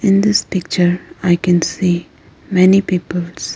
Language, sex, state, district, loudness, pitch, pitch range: English, female, Arunachal Pradesh, Lower Dibang Valley, -15 LUFS, 180 Hz, 175-190 Hz